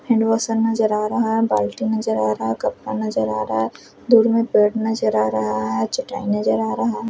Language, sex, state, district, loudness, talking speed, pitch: Hindi, female, Chhattisgarh, Raipur, -20 LUFS, 235 wpm, 110 Hz